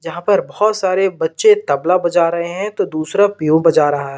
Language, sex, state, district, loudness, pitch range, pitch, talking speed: Hindi, male, Uttar Pradesh, Lalitpur, -15 LUFS, 155-195 Hz, 170 Hz, 215 wpm